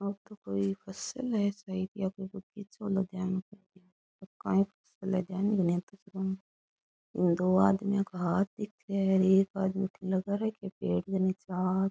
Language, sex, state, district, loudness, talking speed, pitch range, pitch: Rajasthani, female, Rajasthan, Nagaur, -31 LUFS, 165 wpm, 185-200 Hz, 190 Hz